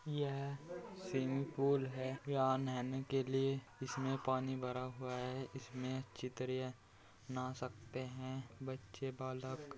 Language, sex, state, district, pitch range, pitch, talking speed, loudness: Hindi, male, Uttar Pradesh, Muzaffarnagar, 130-135 Hz, 130 Hz, 135 wpm, -42 LUFS